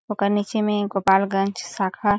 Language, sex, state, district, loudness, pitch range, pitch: Chhattisgarhi, female, Chhattisgarh, Jashpur, -22 LUFS, 195-205 Hz, 200 Hz